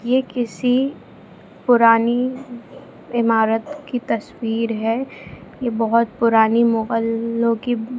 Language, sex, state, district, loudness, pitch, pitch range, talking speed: Hindi, female, Bihar, Jahanabad, -19 LUFS, 235 Hz, 230-245 Hz, 95 wpm